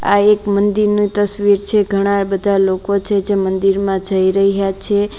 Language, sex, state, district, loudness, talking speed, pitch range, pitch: Gujarati, female, Gujarat, Gandhinagar, -15 LUFS, 160 wpm, 195-205 Hz, 200 Hz